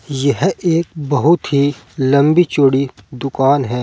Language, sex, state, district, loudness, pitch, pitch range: Hindi, male, Uttar Pradesh, Saharanpur, -15 LUFS, 140 Hz, 135-155 Hz